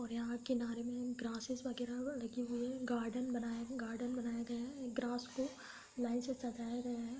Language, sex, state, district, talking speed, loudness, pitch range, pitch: Hindi, female, Uttar Pradesh, Gorakhpur, 185 wpm, -42 LUFS, 235-250 Hz, 245 Hz